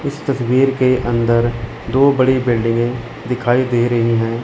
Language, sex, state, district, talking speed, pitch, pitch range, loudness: Hindi, male, Chandigarh, Chandigarh, 150 wpm, 120 Hz, 115-130 Hz, -16 LUFS